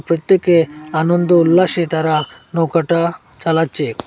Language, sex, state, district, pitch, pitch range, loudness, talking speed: Bengali, male, Assam, Hailakandi, 165 Hz, 160-175 Hz, -16 LUFS, 90 wpm